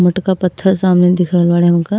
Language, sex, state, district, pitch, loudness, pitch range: Bhojpuri, female, Uttar Pradesh, Ghazipur, 180 Hz, -13 LUFS, 175-190 Hz